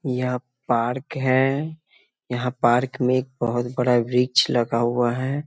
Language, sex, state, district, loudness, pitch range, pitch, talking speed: Hindi, male, Bihar, Muzaffarpur, -22 LUFS, 120-130 Hz, 125 Hz, 155 wpm